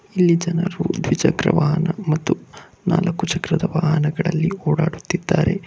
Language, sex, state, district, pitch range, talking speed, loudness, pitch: Kannada, male, Karnataka, Bangalore, 160-180 Hz, 95 wpm, -20 LUFS, 170 Hz